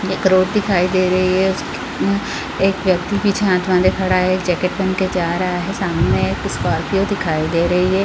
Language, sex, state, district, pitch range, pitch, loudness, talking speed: Hindi, female, Chhattisgarh, Balrampur, 180-190 Hz, 185 Hz, -17 LUFS, 210 wpm